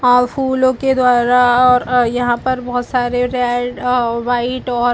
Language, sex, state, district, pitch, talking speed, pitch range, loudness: Hindi, female, Chhattisgarh, Balrampur, 245 Hz, 170 wpm, 245-250 Hz, -15 LUFS